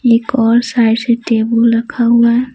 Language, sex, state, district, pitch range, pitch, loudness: Hindi, female, Bihar, Patna, 230-245 Hz, 235 Hz, -12 LUFS